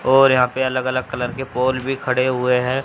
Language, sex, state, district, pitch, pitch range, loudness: Hindi, female, Haryana, Jhajjar, 130 Hz, 125-130 Hz, -19 LUFS